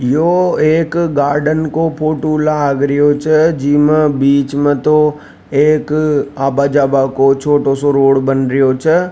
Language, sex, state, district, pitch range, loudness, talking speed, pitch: Rajasthani, male, Rajasthan, Nagaur, 140-155 Hz, -13 LUFS, 145 wpm, 145 Hz